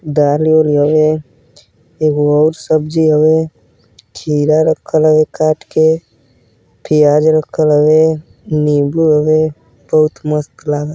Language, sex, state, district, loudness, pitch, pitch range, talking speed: Bhojpuri, male, Uttar Pradesh, Deoria, -13 LUFS, 155 Hz, 150-155 Hz, 105 wpm